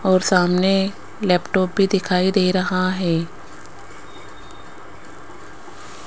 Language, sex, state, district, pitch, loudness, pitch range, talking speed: Hindi, female, Rajasthan, Jaipur, 185 Hz, -19 LUFS, 180-195 Hz, 80 wpm